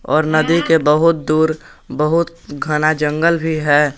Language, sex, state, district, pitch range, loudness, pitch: Hindi, male, Jharkhand, Garhwa, 150-165 Hz, -15 LUFS, 155 Hz